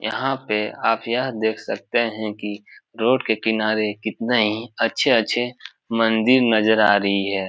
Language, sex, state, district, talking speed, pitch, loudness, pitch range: Hindi, male, Bihar, Supaul, 150 wpm, 110 Hz, -20 LUFS, 105-120 Hz